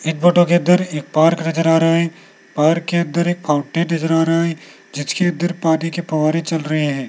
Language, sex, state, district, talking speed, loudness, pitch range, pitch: Hindi, male, Rajasthan, Jaipur, 230 wpm, -17 LUFS, 160-170 Hz, 165 Hz